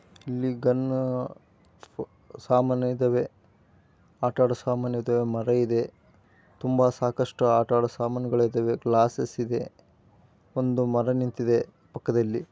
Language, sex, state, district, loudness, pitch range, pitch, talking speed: Kannada, male, Karnataka, Gulbarga, -26 LUFS, 120-125 Hz, 120 Hz, 90 wpm